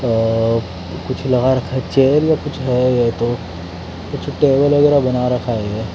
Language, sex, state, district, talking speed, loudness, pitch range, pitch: Hindi, male, Chandigarh, Chandigarh, 190 wpm, -16 LUFS, 115-135 Hz, 125 Hz